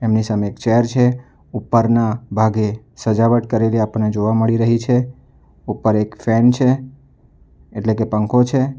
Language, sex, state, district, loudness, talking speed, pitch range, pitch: Gujarati, male, Gujarat, Valsad, -17 LUFS, 150 wpm, 110-125 Hz, 115 Hz